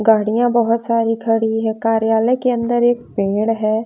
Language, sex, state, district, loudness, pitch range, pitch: Hindi, female, Bihar, West Champaran, -17 LUFS, 220-235 Hz, 225 Hz